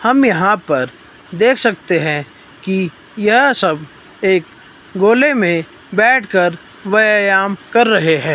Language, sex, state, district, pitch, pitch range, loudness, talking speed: Hindi, male, Himachal Pradesh, Shimla, 190 Hz, 165-220 Hz, -14 LUFS, 120 wpm